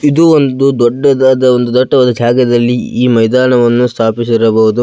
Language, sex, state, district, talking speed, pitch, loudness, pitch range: Kannada, male, Karnataka, Belgaum, 110 wpm, 125 Hz, -10 LUFS, 120-130 Hz